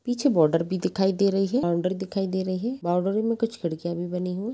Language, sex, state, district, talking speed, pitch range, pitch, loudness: Hindi, female, Chhattisgarh, Balrampur, 265 wpm, 180-220 Hz, 190 Hz, -25 LUFS